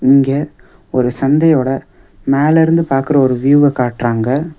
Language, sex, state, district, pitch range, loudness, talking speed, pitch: Tamil, male, Tamil Nadu, Nilgiris, 130-150 Hz, -13 LUFS, 105 wpm, 135 Hz